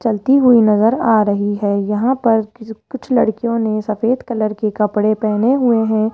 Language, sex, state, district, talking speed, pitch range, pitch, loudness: Hindi, male, Rajasthan, Jaipur, 185 wpm, 215-235 Hz, 220 Hz, -15 LUFS